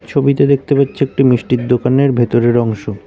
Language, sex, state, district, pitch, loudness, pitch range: Bengali, male, West Bengal, Cooch Behar, 125 Hz, -13 LUFS, 120-140 Hz